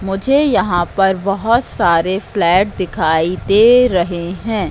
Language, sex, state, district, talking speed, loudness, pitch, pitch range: Hindi, female, Madhya Pradesh, Katni, 125 wpm, -14 LUFS, 195 Hz, 175-220 Hz